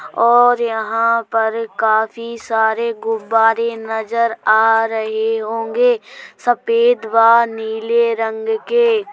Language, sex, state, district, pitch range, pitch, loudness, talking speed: Hindi, female, Uttar Pradesh, Jalaun, 225-235 Hz, 225 Hz, -16 LUFS, 100 wpm